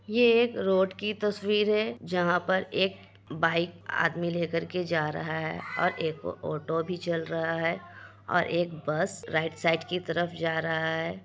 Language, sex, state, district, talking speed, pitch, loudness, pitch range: Hindi, female, Bihar, Kishanganj, 175 wpm, 170 Hz, -28 LUFS, 165-185 Hz